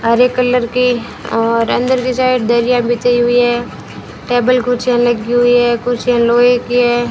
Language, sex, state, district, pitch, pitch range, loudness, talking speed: Hindi, female, Rajasthan, Bikaner, 245 Hz, 240-245 Hz, -13 LUFS, 170 wpm